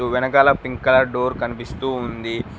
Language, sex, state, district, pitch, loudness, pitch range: Telugu, male, Telangana, Mahabubabad, 125 Hz, -19 LUFS, 120-130 Hz